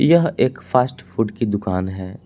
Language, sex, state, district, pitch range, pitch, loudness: Hindi, male, Jharkhand, Palamu, 95-130 Hz, 110 Hz, -20 LUFS